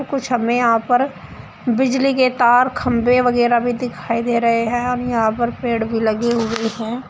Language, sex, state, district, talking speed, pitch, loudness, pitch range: Hindi, female, Uttar Pradesh, Shamli, 185 wpm, 240 Hz, -18 LUFS, 230-250 Hz